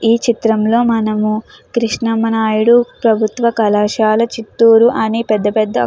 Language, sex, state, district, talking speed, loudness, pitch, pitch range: Telugu, female, Andhra Pradesh, Chittoor, 110 wpm, -14 LUFS, 225 Hz, 215-230 Hz